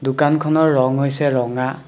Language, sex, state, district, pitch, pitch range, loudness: Assamese, male, Assam, Kamrup Metropolitan, 140 Hz, 130-150 Hz, -17 LUFS